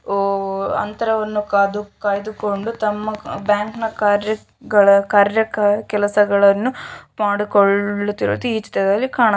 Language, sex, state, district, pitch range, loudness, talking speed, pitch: Kannada, female, Karnataka, Shimoga, 200-215 Hz, -18 LUFS, 85 wpm, 210 Hz